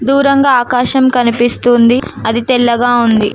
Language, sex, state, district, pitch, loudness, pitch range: Telugu, female, Telangana, Mahabubabad, 245 Hz, -11 LUFS, 235-260 Hz